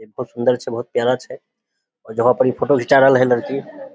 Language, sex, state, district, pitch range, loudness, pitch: Maithili, male, Bihar, Samastipur, 125-140 Hz, -17 LUFS, 130 Hz